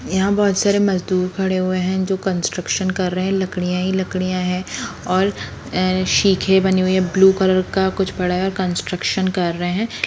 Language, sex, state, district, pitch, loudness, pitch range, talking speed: Hindi, female, Bihar, Sitamarhi, 185 Hz, -18 LUFS, 185-190 Hz, 185 wpm